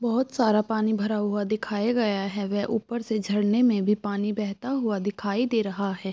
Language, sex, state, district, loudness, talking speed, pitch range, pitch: Hindi, female, Chhattisgarh, Bilaspur, -26 LUFS, 205 wpm, 205-225 Hz, 210 Hz